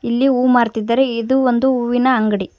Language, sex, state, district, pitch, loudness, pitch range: Kannada, female, Karnataka, Koppal, 245 Hz, -16 LUFS, 235-260 Hz